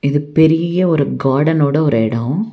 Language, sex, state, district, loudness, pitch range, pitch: Tamil, female, Tamil Nadu, Nilgiris, -15 LUFS, 140-160 Hz, 150 Hz